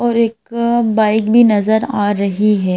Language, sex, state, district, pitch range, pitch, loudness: Hindi, female, Madhya Pradesh, Bhopal, 205-235 Hz, 220 Hz, -14 LUFS